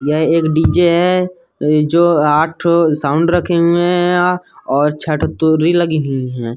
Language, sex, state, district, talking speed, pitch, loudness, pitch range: Hindi, male, Uttar Pradesh, Hamirpur, 180 wpm, 165 Hz, -14 LUFS, 150-175 Hz